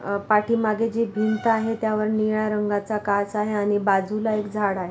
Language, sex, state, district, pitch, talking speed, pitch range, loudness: Marathi, female, Maharashtra, Pune, 215 Hz, 195 wpm, 205-220 Hz, -23 LUFS